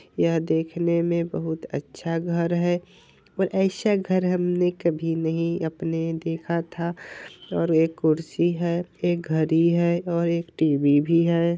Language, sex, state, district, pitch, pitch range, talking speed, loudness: Hindi, male, Bihar, Vaishali, 170 Hz, 165-175 Hz, 150 wpm, -24 LUFS